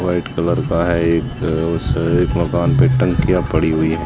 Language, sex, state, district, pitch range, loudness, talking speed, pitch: Hindi, male, Rajasthan, Jaisalmer, 80-90 Hz, -17 LUFS, 190 wpm, 85 Hz